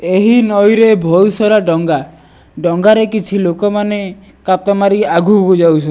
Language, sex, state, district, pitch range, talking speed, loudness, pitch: Odia, male, Odisha, Nuapada, 175-210 Hz, 130 wpm, -11 LUFS, 200 Hz